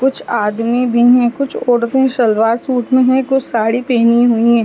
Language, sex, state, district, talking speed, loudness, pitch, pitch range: Hindi, female, Uttar Pradesh, Varanasi, 195 wpm, -13 LUFS, 240 Hz, 235-260 Hz